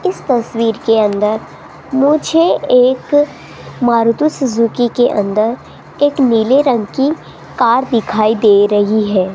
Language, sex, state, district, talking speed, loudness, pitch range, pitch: Hindi, female, Rajasthan, Jaipur, 120 wpm, -13 LUFS, 215-270 Hz, 235 Hz